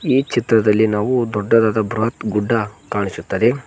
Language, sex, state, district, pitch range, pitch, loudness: Kannada, male, Karnataka, Koppal, 105-115 Hz, 110 Hz, -18 LUFS